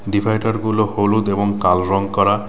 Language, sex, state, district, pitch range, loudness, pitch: Bengali, male, West Bengal, Cooch Behar, 100-110 Hz, -18 LUFS, 100 Hz